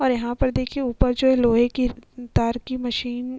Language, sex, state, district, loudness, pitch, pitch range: Hindi, female, Uttar Pradesh, Hamirpur, -22 LUFS, 250 Hz, 240-260 Hz